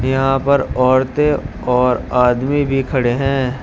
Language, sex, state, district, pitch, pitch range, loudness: Hindi, male, Uttar Pradesh, Shamli, 130 Hz, 125-135 Hz, -16 LUFS